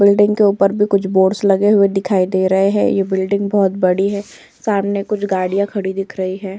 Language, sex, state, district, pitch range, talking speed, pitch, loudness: Hindi, female, Uttar Pradesh, Jyotiba Phule Nagar, 190-200 Hz, 220 wpm, 195 Hz, -16 LUFS